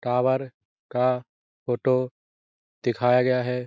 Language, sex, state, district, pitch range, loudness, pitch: Hindi, male, Bihar, Jahanabad, 120-125 Hz, -25 LUFS, 125 Hz